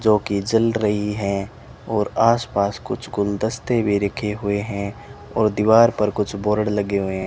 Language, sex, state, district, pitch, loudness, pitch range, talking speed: Hindi, male, Rajasthan, Bikaner, 105 Hz, -21 LUFS, 100-110 Hz, 165 wpm